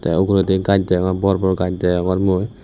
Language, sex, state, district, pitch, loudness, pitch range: Chakma, male, Tripura, West Tripura, 95 Hz, -18 LUFS, 90-95 Hz